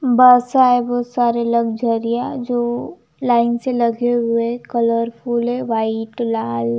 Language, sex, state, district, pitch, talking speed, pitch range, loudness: Hindi, female, Punjab, Kapurthala, 235 Hz, 125 wpm, 230-245 Hz, -18 LUFS